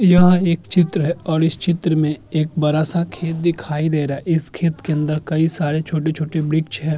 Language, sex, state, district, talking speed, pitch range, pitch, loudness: Hindi, male, Uttar Pradesh, Jyotiba Phule Nagar, 215 wpm, 155-170 Hz, 160 Hz, -19 LUFS